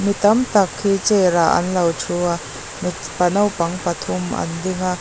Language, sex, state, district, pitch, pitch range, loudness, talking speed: Mizo, female, Mizoram, Aizawl, 180 Hz, 170-195 Hz, -19 LUFS, 190 wpm